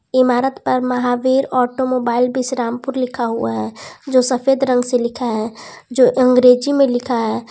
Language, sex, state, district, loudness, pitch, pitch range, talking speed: Hindi, female, Jharkhand, Palamu, -16 LUFS, 250 Hz, 245-255 Hz, 150 wpm